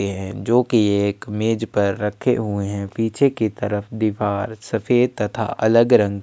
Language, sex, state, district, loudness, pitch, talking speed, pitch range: Hindi, male, Chhattisgarh, Kabirdham, -20 LUFS, 105 Hz, 165 wpm, 100-115 Hz